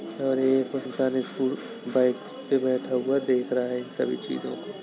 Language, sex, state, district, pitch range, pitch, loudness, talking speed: Hindi, male, Uttar Pradesh, Budaun, 125-130 Hz, 130 Hz, -27 LUFS, 185 wpm